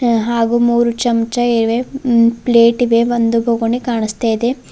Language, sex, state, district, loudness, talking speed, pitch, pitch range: Kannada, female, Karnataka, Bidar, -14 LUFS, 140 wpm, 235 Hz, 230-240 Hz